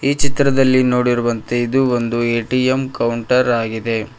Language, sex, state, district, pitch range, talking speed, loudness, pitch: Kannada, male, Karnataka, Koppal, 115-130 Hz, 115 wpm, -17 LUFS, 125 Hz